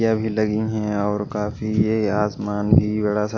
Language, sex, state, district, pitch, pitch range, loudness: Hindi, male, Odisha, Malkangiri, 105 Hz, 105-110 Hz, -21 LUFS